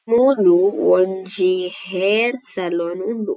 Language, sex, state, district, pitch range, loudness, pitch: Tulu, female, Karnataka, Dakshina Kannada, 185-245 Hz, -18 LUFS, 195 Hz